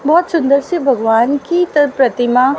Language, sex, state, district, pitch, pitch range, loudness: Hindi, female, Haryana, Rohtak, 280 Hz, 255-330 Hz, -13 LUFS